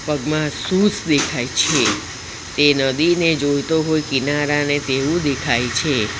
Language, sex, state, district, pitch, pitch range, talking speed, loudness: Gujarati, female, Gujarat, Valsad, 145 Hz, 135-155 Hz, 115 wpm, -18 LUFS